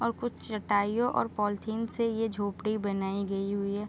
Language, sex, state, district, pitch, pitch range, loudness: Hindi, female, Uttar Pradesh, Deoria, 210 Hz, 200-225 Hz, -31 LUFS